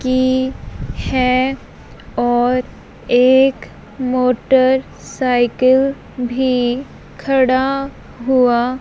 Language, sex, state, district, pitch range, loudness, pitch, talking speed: Hindi, female, Punjab, Fazilka, 250-260 Hz, -16 LUFS, 255 Hz, 55 wpm